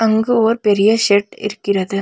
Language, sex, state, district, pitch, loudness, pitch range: Tamil, female, Tamil Nadu, Nilgiris, 210 Hz, -15 LUFS, 200-225 Hz